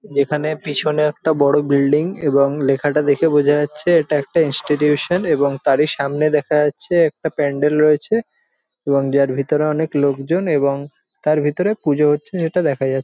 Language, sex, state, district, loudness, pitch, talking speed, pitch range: Bengali, male, West Bengal, Jhargram, -17 LUFS, 150 Hz, 155 wpm, 140-160 Hz